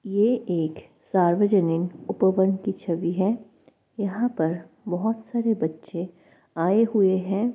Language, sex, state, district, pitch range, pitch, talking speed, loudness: Hindi, female, Bihar, Kishanganj, 170-215 Hz, 190 Hz, 120 wpm, -24 LUFS